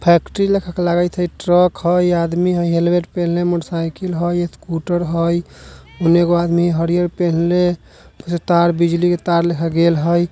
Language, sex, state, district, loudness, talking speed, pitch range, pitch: Maithili, male, Bihar, Vaishali, -17 LUFS, 170 wpm, 170-175 Hz, 175 Hz